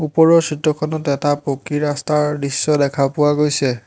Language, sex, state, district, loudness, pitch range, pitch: Assamese, male, Assam, Hailakandi, -17 LUFS, 140-155 Hz, 150 Hz